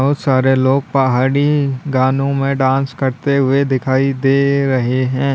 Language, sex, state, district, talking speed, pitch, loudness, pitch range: Hindi, male, Uttar Pradesh, Lalitpur, 145 wpm, 135 Hz, -15 LUFS, 130-140 Hz